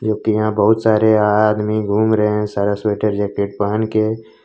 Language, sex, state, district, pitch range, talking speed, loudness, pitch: Hindi, male, Jharkhand, Ranchi, 105-110 Hz, 175 wpm, -17 LUFS, 105 Hz